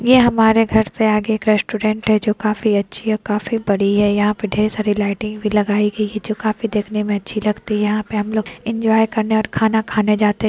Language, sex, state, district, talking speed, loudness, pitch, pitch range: Hindi, female, Bihar, Lakhisarai, 230 wpm, -18 LUFS, 215 Hz, 210-220 Hz